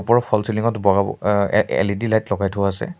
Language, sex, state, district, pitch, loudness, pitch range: Assamese, male, Assam, Sonitpur, 105 Hz, -19 LUFS, 100-110 Hz